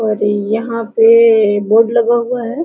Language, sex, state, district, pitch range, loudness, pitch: Hindi, female, Jharkhand, Sahebganj, 215-235 Hz, -12 LUFS, 230 Hz